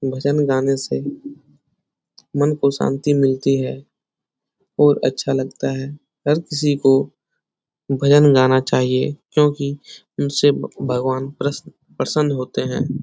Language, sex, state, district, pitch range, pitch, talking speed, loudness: Hindi, male, Bihar, Lakhisarai, 135-145 Hz, 140 Hz, 120 wpm, -19 LUFS